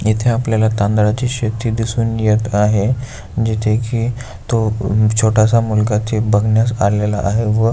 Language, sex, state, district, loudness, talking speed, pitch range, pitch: Marathi, male, Maharashtra, Aurangabad, -16 LUFS, 130 wpm, 105-115 Hz, 110 Hz